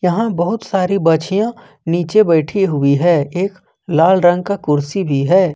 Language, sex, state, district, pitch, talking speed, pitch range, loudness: Hindi, male, Jharkhand, Ranchi, 175 Hz, 160 wpm, 160-195 Hz, -15 LUFS